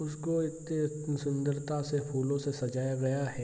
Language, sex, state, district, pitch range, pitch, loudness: Hindi, male, Bihar, Araria, 135-150 Hz, 145 Hz, -33 LUFS